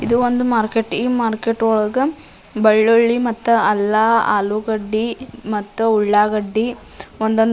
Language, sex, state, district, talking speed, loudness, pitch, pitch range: Kannada, female, Karnataka, Dharwad, 110 wpm, -17 LUFS, 225 Hz, 215-235 Hz